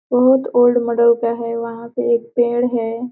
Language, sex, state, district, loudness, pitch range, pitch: Hindi, female, Bihar, Gopalganj, -17 LUFS, 235-245 Hz, 235 Hz